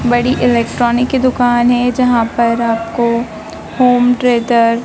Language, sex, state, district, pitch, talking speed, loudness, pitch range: Hindi, male, Madhya Pradesh, Dhar, 240 Hz, 135 wpm, -13 LUFS, 235-245 Hz